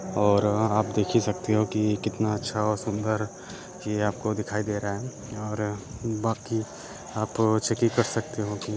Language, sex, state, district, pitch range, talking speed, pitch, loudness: Hindi, male, Uttar Pradesh, Jyotiba Phule Nagar, 105-115 Hz, 180 wpm, 110 Hz, -27 LUFS